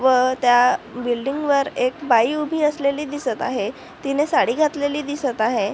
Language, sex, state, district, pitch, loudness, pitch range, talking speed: Marathi, female, Maharashtra, Chandrapur, 275 Hz, -20 LUFS, 250-295 Hz, 155 wpm